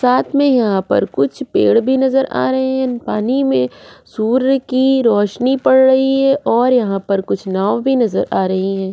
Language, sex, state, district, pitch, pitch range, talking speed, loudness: Hindi, female, Goa, North and South Goa, 250 Hz, 195-265 Hz, 195 wpm, -15 LUFS